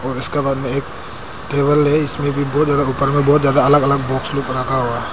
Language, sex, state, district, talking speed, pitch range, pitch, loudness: Hindi, male, Arunachal Pradesh, Papum Pare, 255 wpm, 130-145 Hz, 140 Hz, -16 LUFS